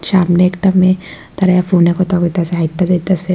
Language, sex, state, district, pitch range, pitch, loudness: Bengali, female, Tripura, West Tripura, 175-185 Hz, 180 Hz, -13 LUFS